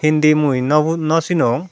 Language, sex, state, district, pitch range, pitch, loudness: Chakma, female, Tripura, Dhalai, 150-160 Hz, 155 Hz, -16 LUFS